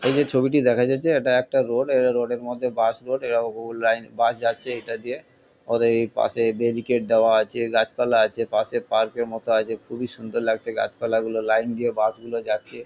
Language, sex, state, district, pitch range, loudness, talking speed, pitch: Bengali, male, West Bengal, Kolkata, 115-120 Hz, -23 LUFS, 230 wpm, 115 Hz